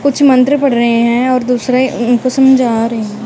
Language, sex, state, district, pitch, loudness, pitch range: Hindi, female, Punjab, Kapurthala, 250 Hz, -11 LUFS, 235-265 Hz